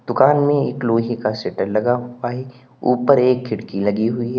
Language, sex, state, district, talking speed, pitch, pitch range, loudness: Hindi, male, Uttar Pradesh, Lalitpur, 205 wpm, 120 Hz, 110-125 Hz, -19 LUFS